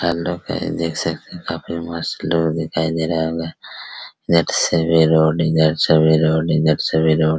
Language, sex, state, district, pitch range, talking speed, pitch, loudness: Hindi, male, Bihar, Araria, 80-85 Hz, 185 wpm, 80 Hz, -18 LUFS